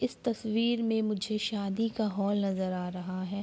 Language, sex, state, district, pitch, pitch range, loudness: Hindi, female, Bihar, Araria, 210 Hz, 195-225 Hz, -31 LUFS